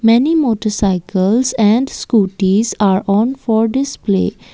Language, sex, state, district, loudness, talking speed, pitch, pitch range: English, female, Assam, Kamrup Metropolitan, -15 LUFS, 105 wpm, 220 Hz, 200-245 Hz